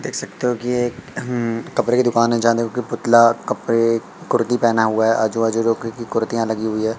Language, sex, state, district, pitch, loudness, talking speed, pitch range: Hindi, male, Madhya Pradesh, Katni, 115 Hz, -19 LUFS, 230 wpm, 115-120 Hz